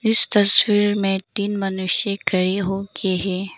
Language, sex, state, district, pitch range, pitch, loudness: Hindi, female, Arunachal Pradesh, Lower Dibang Valley, 190-205 Hz, 195 Hz, -18 LUFS